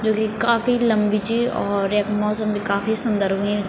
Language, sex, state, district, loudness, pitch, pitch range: Garhwali, female, Uttarakhand, Tehri Garhwal, -18 LUFS, 210 Hz, 205-225 Hz